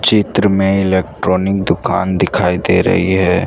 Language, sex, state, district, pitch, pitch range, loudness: Hindi, male, Gujarat, Valsad, 95 Hz, 90-100 Hz, -14 LUFS